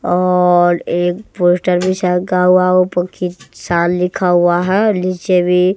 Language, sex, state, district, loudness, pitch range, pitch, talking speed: Hindi, male, Bihar, West Champaran, -14 LUFS, 175-185 Hz, 180 Hz, 125 wpm